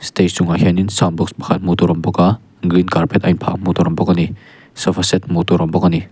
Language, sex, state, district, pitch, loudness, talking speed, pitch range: Mizo, male, Mizoram, Aizawl, 90 Hz, -16 LUFS, 275 wpm, 85-95 Hz